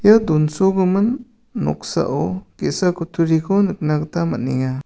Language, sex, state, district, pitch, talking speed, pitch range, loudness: Garo, male, Meghalaya, South Garo Hills, 170 Hz, 100 wpm, 150-195 Hz, -19 LUFS